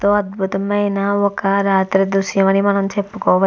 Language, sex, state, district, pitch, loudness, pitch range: Telugu, female, Andhra Pradesh, Visakhapatnam, 195 Hz, -17 LUFS, 195-200 Hz